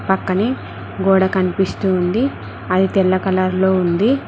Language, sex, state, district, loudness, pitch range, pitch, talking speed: Telugu, female, Telangana, Mahabubabad, -17 LUFS, 185-195 Hz, 190 Hz, 125 wpm